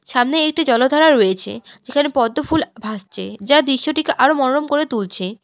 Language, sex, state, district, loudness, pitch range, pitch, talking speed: Bengali, female, West Bengal, Alipurduar, -16 LUFS, 225-305 Hz, 265 Hz, 145 wpm